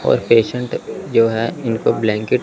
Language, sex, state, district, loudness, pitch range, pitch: Hindi, male, Chandigarh, Chandigarh, -17 LUFS, 110-115 Hz, 115 Hz